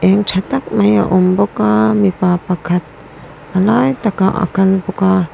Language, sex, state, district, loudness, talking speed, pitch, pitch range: Mizo, female, Mizoram, Aizawl, -14 LUFS, 155 wpm, 190 Hz, 180-200 Hz